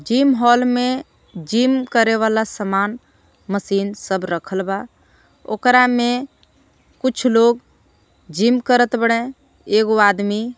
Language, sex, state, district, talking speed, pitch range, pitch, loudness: Bhojpuri, female, Jharkhand, Palamu, 115 wpm, 205-245 Hz, 230 Hz, -17 LUFS